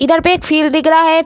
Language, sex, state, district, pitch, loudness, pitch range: Hindi, female, Uttar Pradesh, Deoria, 320 Hz, -11 LUFS, 310-330 Hz